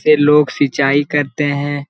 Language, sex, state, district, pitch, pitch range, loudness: Hindi, male, Jharkhand, Jamtara, 145 Hz, 145-150 Hz, -14 LUFS